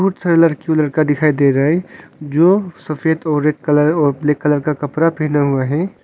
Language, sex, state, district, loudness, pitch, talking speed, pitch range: Hindi, male, Arunachal Pradesh, Longding, -15 LUFS, 155 Hz, 210 wpm, 145-165 Hz